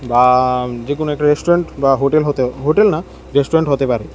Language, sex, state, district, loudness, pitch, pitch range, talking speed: Bengali, male, Tripura, West Tripura, -15 LUFS, 140 Hz, 125-155 Hz, 190 wpm